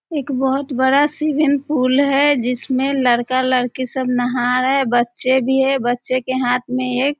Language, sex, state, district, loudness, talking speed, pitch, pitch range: Hindi, female, Bihar, Madhepura, -17 LUFS, 185 wpm, 260 Hz, 250-275 Hz